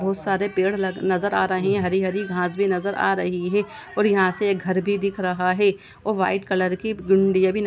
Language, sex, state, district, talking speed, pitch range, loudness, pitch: Hindi, female, Chhattisgarh, Sukma, 220 wpm, 185-200 Hz, -22 LUFS, 195 Hz